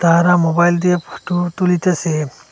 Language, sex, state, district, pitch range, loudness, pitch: Bengali, male, Assam, Hailakandi, 170-180 Hz, -16 LUFS, 175 Hz